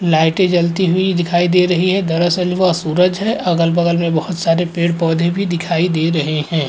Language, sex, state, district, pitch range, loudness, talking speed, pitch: Hindi, male, Uttar Pradesh, Muzaffarnagar, 165-180 Hz, -15 LUFS, 190 wpm, 175 Hz